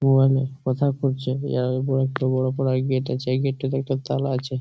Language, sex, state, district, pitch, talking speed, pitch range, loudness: Bengali, male, West Bengal, Malda, 135 Hz, 220 wpm, 130-135 Hz, -23 LUFS